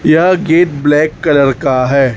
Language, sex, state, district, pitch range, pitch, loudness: Hindi, male, Chhattisgarh, Raipur, 140-165 Hz, 150 Hz, -11 LUFS